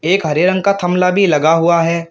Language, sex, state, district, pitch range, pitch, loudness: Hindi, male, Uttar Pradesh, Shamli, 165-185 Hz, 175 Hz, -13 LUFS